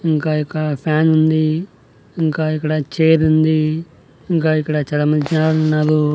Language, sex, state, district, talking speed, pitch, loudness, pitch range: Telugu, male, Andhra Pradesh, Annamaya, 135 wpm, 155 Hz, -17 LUFS, 150-160 Hz